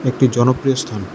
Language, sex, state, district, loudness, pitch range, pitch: Bengali, male, Tripura, West Tripura, -17 LUFS, 120-130 Hz, 125 Hz